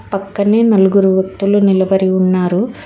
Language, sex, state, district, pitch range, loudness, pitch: Telugu, female, Telangana, Hyderabad, 190-200 Hz, -13 LUFS, 195 Hz